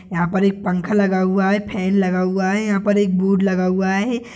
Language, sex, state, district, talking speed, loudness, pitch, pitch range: Hindi, male, Bihar, Purnia, 250 wpm, -18 LUFS, 195 Hz, 185-205 Hz